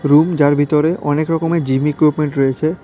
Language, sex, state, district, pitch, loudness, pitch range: Bengali, male, Tripura, West Tripura, 150 Hz, -15 LUFS, 145-160 Hz